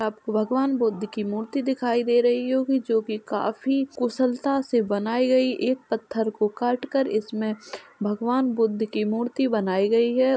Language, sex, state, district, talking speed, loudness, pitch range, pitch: Hindi, female, Uttar Pradesh, Jalaun, 170 wpm, -24 LUFS, 215-260 Hz, 235 Hz